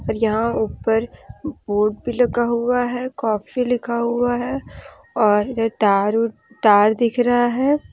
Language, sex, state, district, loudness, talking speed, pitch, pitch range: Hindi, female, Jharkhand, Deoghar, -19 LUFS, 130 wpm, 235 Hz, 220-245 Hz